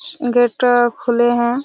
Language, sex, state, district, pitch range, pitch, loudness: Hindi, female, Chhattisgarh, Raigarh, 240-250 Hz, 245 Hz, -16 LUFS